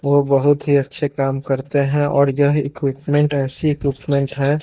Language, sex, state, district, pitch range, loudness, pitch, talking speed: Hindi, male, Bihar, Katihar, 135-145 Hz, -17 LUFS, 140 Hz, 170 wpm